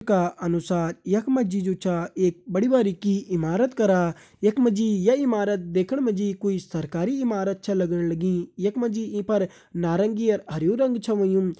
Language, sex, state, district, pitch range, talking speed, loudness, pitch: Hindi, male, Uttarakhand, Uttarkashi, 175-220 Hz, 190 wpm, -24 LUFS, 195 Hz